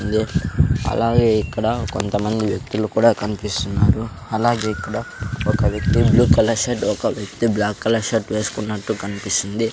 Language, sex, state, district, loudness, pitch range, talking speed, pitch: Telugu, male, Andhra Pradesh, Sri Satya Sai, -20 LUFS, 105-115 Hz, 130 wpm, 110 Hz